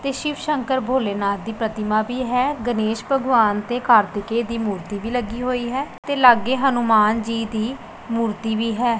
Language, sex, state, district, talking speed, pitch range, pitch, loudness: Punjabi, female, Punjab, Pathankot, 175 wpm, 220-255 Hz, 235 Hz, -20 LUFS